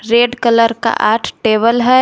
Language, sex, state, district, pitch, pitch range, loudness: Hindi, female, Jharkhand, Garhwa, 230 Hz, 230-240 Hz, -13 LUFS